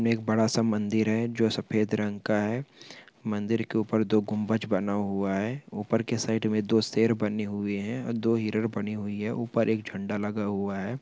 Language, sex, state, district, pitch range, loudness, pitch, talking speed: Hindi, male, Bihar, Begusarai, 105-115 Hz, -28 LUFS, 110 Hz, 210 wpm